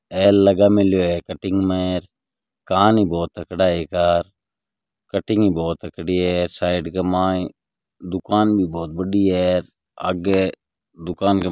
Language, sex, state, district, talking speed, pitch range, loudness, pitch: Marwari, male, Rajasthan, Nagaur, 145 wpm, 90-100 Hz, -19 LUFS, 95 Hz